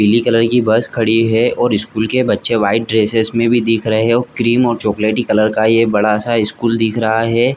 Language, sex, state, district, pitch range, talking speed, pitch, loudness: Hindi, male, Chhattisgarh, Bilaspur, 110-115 Hz, 230 wpm, 115 Hz, -14 LUFS